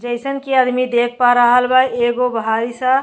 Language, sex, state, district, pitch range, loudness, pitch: Bhojpuri, female, Uttar Pradesh, Deoria, 240-255 Hz, -15 LUFS, 245 Hz